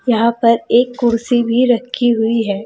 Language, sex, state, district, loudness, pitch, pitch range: Hindi, female, Uttar Pradesh, Saharanpur, -15 LUFS, 235 Hz, 230-245 Hz